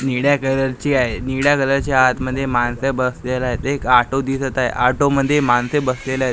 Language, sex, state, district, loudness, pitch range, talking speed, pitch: Marathi, male, Maharashtra, Gondia, -18 LUFS, 125-135 Hz, 200 wpm, 130 Hz